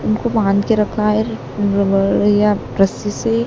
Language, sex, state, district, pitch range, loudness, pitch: Hindi, female, Madhya Pradesh, Dhar, 200-220 Hz, -16 LUFS, 210 Hz